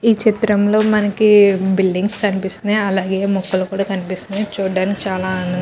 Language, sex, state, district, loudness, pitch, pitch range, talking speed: Telugu, female, Andhra Pradesh, Krishna, -17 LUFS, 195 Hz, 190-210 Hz, 140 wpm